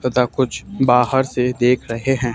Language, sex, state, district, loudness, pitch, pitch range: Hindi, male, Haryana, Charkhi Dadri, -18 LUFS, 125 Hz, 125-130 Hz